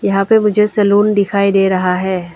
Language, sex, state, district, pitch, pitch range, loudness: Hindi, female, Arunachal Pradesh, Lower Dibang Valley, 200 Hz, 190-210 Hz, -13 LUFS